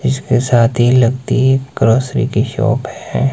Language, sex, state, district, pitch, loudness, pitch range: Hindi, male, Himachal Pradesh, Shimla, 130 Hz, -14 LUFS, 120-130 Hz